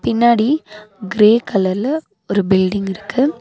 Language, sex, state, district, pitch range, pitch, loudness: Tamil, female, Tamil Nadu, Nilgiris, 195-240 Hz, 210 Hz, -16 LUFS